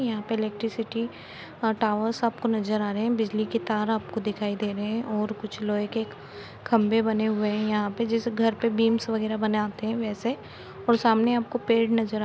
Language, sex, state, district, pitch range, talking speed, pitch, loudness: Hindi, female, Jharkhand, Jamtara, 210-230 Hz, 195 wpm, 220 Hz, -26 LUFS